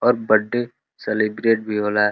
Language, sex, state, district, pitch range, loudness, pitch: Bhojpuri, male, Uttar Pradesh, Deoria, 105-120 Hz, -20 LUFS, 110 Hz